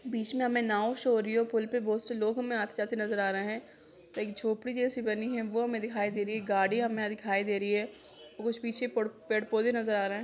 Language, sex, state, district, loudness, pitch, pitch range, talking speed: Hindi, female, Jharkhand, Sahebganj, -31 LUFS, 220 Hz, 210-235 Hz, 260 wpm